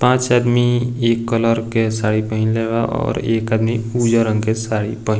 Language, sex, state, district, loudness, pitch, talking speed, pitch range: Bhojpuri, male, Bihar, East Champaran, -18 LUFS, 115 Hz, 195 wpm, 110-120 Hz